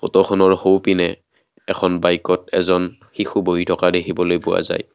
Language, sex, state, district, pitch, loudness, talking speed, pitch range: Assamese, male, Assam, Kamrup Metropolitan, 90 Hz, -18 LUFS, 135 wpm, 90-95 Hz